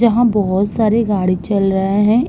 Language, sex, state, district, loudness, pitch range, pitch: Hindi, female, Uttar Pradesh, Budaun, -15 LUFS, 195-230 Hz, 205 Hz